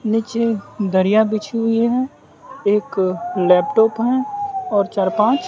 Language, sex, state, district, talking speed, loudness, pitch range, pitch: Hindi, male, Bihar, West Champaran, 120 wpm, -18 LUFS, 200-250 Hz, 220 Hz